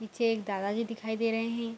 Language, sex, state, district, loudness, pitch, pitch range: Hindi, female, Bihar, Kishanganj, -31 LUFS, 225 Hz, 220-230 Hz